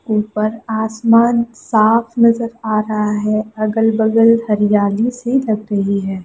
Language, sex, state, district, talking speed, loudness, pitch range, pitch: Hindi, female, Chhattisgarh, Sukma, 125 wpm, -15 LUFS, 210-230 Hz, 220 Hz